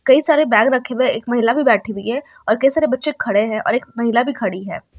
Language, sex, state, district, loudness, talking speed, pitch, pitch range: Hindi, female, Uttar Pradesh, Ghazipur, -17 LUFS, 290 wpm, 240 Hz, 220-280 Hz